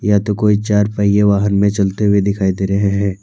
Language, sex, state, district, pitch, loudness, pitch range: Hindi, male, Jharkhand, Deoghar, 100 Hz, -15 LUFS, 100-105 Hz